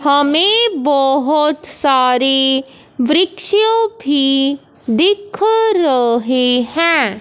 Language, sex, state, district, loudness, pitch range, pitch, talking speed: Hindi, male, Punjab, Fazilka, -13 LUFS, 265-380 Hz, 285 Hz, 65 wpm